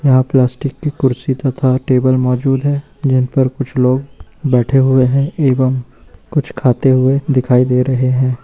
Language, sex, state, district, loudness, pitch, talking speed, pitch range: Hindi, male, Uttar Pradesh, Lucknow, -14 LUFS, 130 Hz, 165 wpm, 130-135 Hz